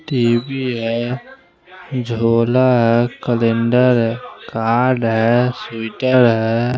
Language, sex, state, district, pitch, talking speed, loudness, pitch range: Hindi, male, Chandigarh, Chandigarh, 120 Hz, 90 wpm, -16 LUFS, 115-130 Hz